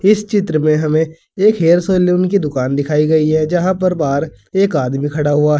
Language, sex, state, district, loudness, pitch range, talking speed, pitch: Hindi, male, Uttar Pradesh, Saharanpur, -15 LUFS, 150-185 Hz, 215 wpm, 160 Hz